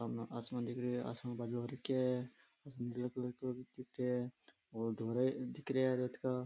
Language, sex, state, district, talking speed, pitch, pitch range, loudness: Rajasthani, male, Rajasthan, Nagaur, 225 wpm, 125 Hz, 120-130 Hz, -40 LUFS